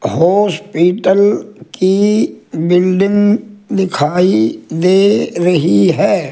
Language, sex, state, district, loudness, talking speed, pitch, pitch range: Hindi, male, Rajasthan, Jaipur, -13 LUFS, 65 wpm, 185 Hz, 170-205 Hz